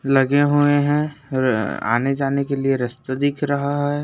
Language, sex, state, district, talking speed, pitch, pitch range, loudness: Hindi, male, Uttarakhand, Uttarkashi, 180 wpm, 140 Hz, 135-145 Hz, -20 LUFS